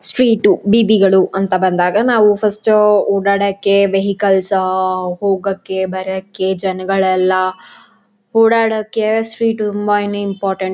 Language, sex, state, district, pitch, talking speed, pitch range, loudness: Kannada, female, Karnataka, Mysore, 200 Hz, 100 wpm, 190-210 Hz, -14 LUFS